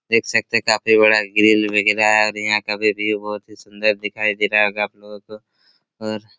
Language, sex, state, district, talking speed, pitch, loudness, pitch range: Hindi, male, Chhattisgarh, Raigarh, 225 wpm, 105 Hz, -17 LUFS, 105-110 Hz